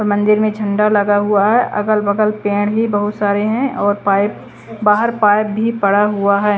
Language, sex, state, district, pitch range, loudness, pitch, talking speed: Hindi, female, Chandigarh, Chandigarh, 205-215 Hz, -15 LUFS, 210 Hz, 200 wpm